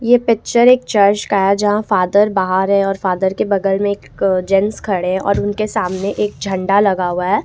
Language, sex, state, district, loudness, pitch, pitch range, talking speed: Hindi, female, Jharkhand, Ranchi, -15 LUFS, 200 Hz, 190-210 Hz, 210 wpm